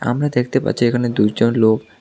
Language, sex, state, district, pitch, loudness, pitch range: Bengali, male, Tripura, South Tripura, 120 Hz, -17 LUFS, 110-125 Hz